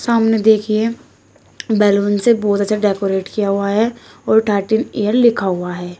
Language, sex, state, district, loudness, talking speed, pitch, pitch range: Hindi, female, Uttar Pradesh, Shamli, -16 LUFS, 160 wpm, 210 Hz, 200-220 Hz